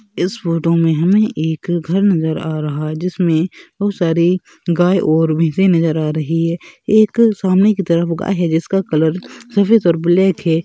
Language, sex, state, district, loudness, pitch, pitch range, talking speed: Hindi, male, Bihar, Gaya, -15 LUFS, 170 Hz, 160-195 Hz, 180 wpm